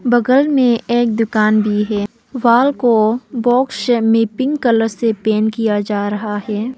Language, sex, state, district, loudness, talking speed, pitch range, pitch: Hindi, female, Arunachal Pradesh, Papum Pare, -15 LUFS, 160 wpm, 215-245 Hz, 225 Hz